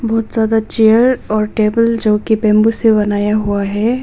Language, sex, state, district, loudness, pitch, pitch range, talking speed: Hindi, female, Nagaland, Kohima, -13 LUFS, 220 Hz, 210-225 Hz, 180 wpm